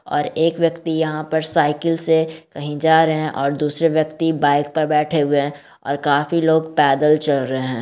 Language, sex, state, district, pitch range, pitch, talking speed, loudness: Magahi, male, Bihar, Gaya, 145-160 Hz, 155 Hz, 200 wpm, -18 LUFS